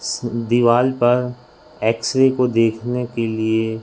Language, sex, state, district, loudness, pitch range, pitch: Hindi, male, Madhya Pradesh, Katni, -18 LUFS, 115-125 Hz, 120 Hz